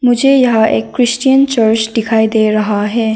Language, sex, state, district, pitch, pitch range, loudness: Hindi, female, Arunachal Pradesh, Lower Dibang Valley, 225 Hz, 220-245 Hz, -12 LUFS